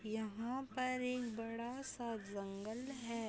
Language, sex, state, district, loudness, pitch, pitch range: Hindi, female, Uttar Pradesh, Hamirpur, -43 LUFS, 235 Hz, 220-250 Hz